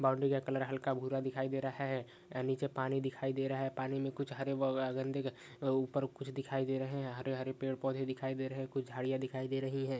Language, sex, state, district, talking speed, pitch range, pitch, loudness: Hindi, male, West Bengal, Paschim Medinipur, 265 wpm, 130-135 Hz, 135 Hz, -38 LUFS